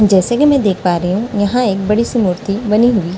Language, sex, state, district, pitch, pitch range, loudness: Hindi, female, Delhi, New Delhi, 210 Hz, 190-235 Hz, -14 LUFS